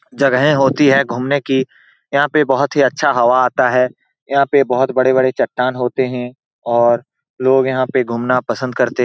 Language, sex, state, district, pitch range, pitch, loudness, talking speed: Hindi, male, Bihar, Saran, 125-140 Hz, 130 Hz, -15 LUFS, 180 wpm